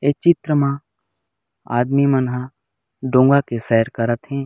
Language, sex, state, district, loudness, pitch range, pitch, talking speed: Chhattisgarhi, male, Chhattisgarh, Raigarh, -18 LUFS, 115-140 Hz, 125 Hz, 150 wpm